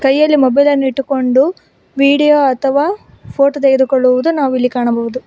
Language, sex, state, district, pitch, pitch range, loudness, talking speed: Kannada, female, Karnataka, Bangalore, 275 Hz, 260-285 Hz, -13 LUFS, 125 wpm